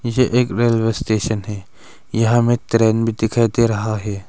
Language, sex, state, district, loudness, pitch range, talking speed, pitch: Hindi, male, Arunachal Pradesh, Longding, -18 LUFS, 110-120 Hz, 180 wpm, 115 Hz